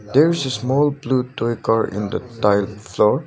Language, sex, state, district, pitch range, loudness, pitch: English, male, Nagaland, Dimapur, 105-135 Hz, -20 LUFS, 120 Hz